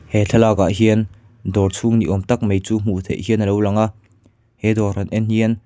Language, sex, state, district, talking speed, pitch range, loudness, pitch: Mizo, male, Mizoram, Aizawl, 235 wpm, 100-110 Hz, -18 LUFS, 110 Hz